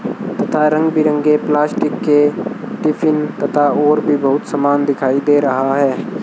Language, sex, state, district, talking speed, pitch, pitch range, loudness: Hindi, male, Rajasthan, Bikaner, 145 wpm, 150 Hz, 145-155 Hz, -15 LUFS